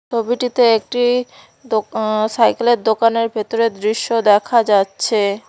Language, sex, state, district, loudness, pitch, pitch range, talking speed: Bengali, female, West Bengal, Cooch Behar, -16 LUFS, 230 Hz, 215-240 Hz, 110 wpm